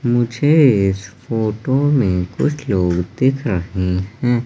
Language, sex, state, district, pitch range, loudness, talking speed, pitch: Hindi, male, Madhya Pradesh, Katni, 95-135 Hz, -17 LUFS, 120 wpm, 115 Hz